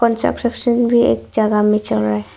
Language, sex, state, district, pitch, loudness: Hindi, female, Arunachal Pradesh, Longding, 210 Hz, -16 LUFS